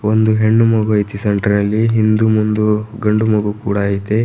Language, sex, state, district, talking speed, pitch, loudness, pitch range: Kannada, male, Karnataka, Bidar, 170 wpm, 105 Hz, -15 LUFS, 105-110 Hz